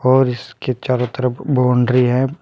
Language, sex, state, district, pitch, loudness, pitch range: Hindi, male, Uttar Pradesh, Saharanpur, 125 Hz, -17 LUFS, 125-130 Hz